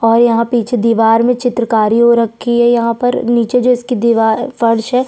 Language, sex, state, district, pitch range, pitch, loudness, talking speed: Hindi, female, Chhattisgarh, Sukma, 230-245 Hz, 235 Hz, -12 LUFS, 190 wpm